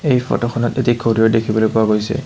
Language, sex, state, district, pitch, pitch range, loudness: Assamese, male, Assam, Kamrup Metropolitan, 115 Hz, 110-120 Hz, -16 LUFS